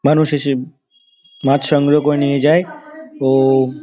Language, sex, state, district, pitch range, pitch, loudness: Bengali, male, West Bengal, Dakshin Dinajpur, 135-160 Hz, 145 Hz, -15 LUFS